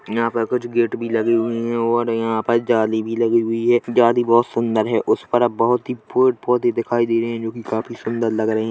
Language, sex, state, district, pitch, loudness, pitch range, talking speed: Hindi, male, Chhattisgarh, Korba, 115 Hz, -19 LUFS, 115-120 Hz, 255 wpm